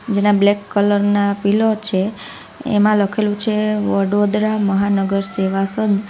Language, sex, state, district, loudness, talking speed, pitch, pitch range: Gujarati, female, Gujarat, Valsad, -17 LUFS, 130 wpm, 205 Hz, 200-215 Hz